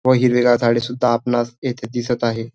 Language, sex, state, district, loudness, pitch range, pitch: Marathi, male, Maharashtra, Dhule, -18 LUFS, 120-125 Hz, 120 Hz